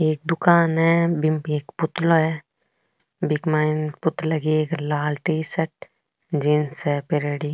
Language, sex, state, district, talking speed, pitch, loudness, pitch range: Marwari, female, Rajasthan, Nagaur, 135 wpm, 155 Hz, -22 LUFS, 150-160 Hz